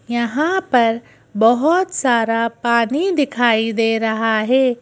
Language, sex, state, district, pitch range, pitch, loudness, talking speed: Hindi, female, Madhya Pradesh, Bhopal, 225-270 Hz, 235 Hz, -17 LUFS, 110 wpm